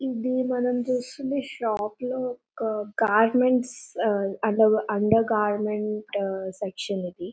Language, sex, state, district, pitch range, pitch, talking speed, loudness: Telugu, female, Telangana, Nalgonda, 210-250 Hz, 220 Hz, 100 wpm, -25 LUFS